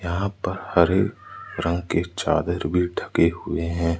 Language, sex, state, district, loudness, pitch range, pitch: Hindi, male, Madhya Pradesh, Umaria, -23 LUFS, 85-90 Hz, 85 Hz